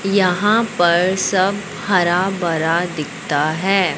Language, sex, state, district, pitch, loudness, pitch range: Hindi, male, Punjab, Fazilka, 185 Hz, -17 LUFS, 175-195 Hz